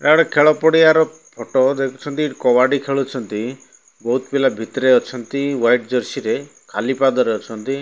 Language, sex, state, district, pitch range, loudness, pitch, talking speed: Odia, male, Odisha, Malkangiri, 125-140 Hz, -17 LUFS, 130 Hz, 145 wpm